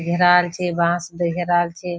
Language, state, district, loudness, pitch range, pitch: Surjapuri, Bihar, Kishanganj, -19 LUFS, 170-175 Hz, 175 Hz